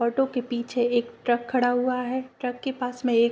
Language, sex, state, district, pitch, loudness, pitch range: Hindi, female, Uttar Pradesh, Gorakhpur, 245 Hz, -26 LUFS, 240-255 Hz